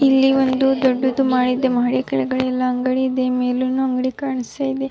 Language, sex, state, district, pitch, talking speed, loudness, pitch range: Kannada, female, Karnataka, Raichur, 255 Hz, 185 wpm, -19 LUFS, 250-265 Hz